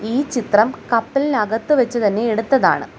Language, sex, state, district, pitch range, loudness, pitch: Malayalam, female, Kerala, Kollam, 220-270 Hz, -18 LUFS, 230 Hz